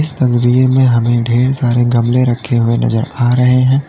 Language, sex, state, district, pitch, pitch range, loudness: Hindi, male, Uttar Pradesh, Lalitpur, 120 Hz, 120-130 Hz, -12 LUFS